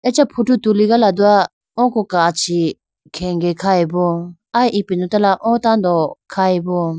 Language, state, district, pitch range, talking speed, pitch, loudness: Idu Mishmi, Arunachal Pradesh, Lower Dibang Valley, 175-220 Hz, 110 wpm, 185 Hz, -16 LUFS